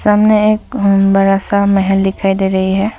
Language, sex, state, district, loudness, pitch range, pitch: Hindi, female, Assam, Sonitpur, -12 LUFS, 195-210 Hz, 195 Hz